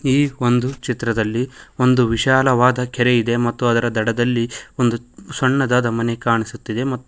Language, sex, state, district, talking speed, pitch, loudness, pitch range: Kannada, male, Karnataka, Koppal, 135 wpm, 120 Hz, -18 LUFS, 115-130 Hz